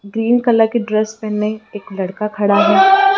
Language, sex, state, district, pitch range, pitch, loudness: Hindi, female, Madhya Pradesh, Dhar, 210-230 Hz, 215 Hz, -15 LUFS